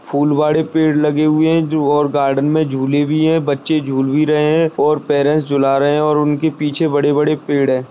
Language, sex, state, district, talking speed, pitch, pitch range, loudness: Hindi, male, Uttar Pradesh, Gorakhpur, 220 wpm, 150 Hz, 145-155 Hz, -15 LUFS